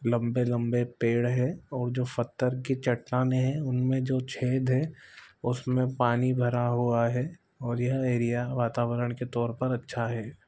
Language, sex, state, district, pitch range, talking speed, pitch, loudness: Hindi, male, Chhattisgarh, Bilaspur, 120-130 Hz, 160 wpm, 125 Hz, -28 LUFS